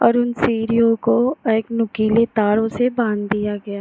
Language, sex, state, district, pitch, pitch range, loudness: Hindi, female, Jharkhand, Jamtara, 230 Hz, 215-235 Hz, -18 LUFS